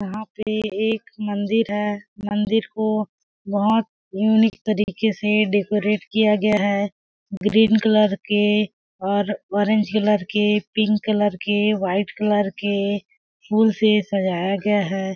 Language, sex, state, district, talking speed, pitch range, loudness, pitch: Hindi, female, Chhattisgarh, Balrampur, 130 wpm, 205-215 Hz, -21 LUFS, 210 Hz